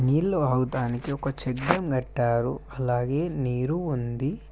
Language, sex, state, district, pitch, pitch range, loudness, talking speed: Telugu, male, Telangana, Mahabubabad, 130 Hz, 125-150 Hz, -27 LUFS, 120 wpm